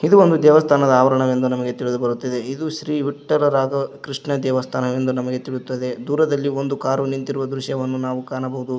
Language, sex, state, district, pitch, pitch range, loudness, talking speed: Kannada, male, Karnataka, Koppal, 135 Hz, 130-140 Hz, -20 LUFS, 155 wpm